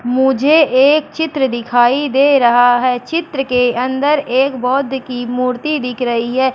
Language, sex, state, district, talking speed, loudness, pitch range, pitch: Hindi, female, Madhya Pradesh, Katni, 155 wpm, -14 LUFS, 245-280 Hz, 260 Hz